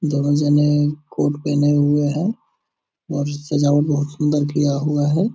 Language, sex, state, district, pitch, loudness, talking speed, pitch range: Hindi, male, Bihar, Purnia, 145 Hz, -19 LUFS, 145 wpm, 145-150 Hz